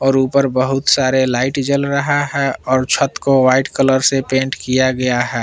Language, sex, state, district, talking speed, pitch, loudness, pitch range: Hindi, male, Jharkhand, Palamu, 200 wpm, 130 Hz, -15 LUFS, 130-135 Hz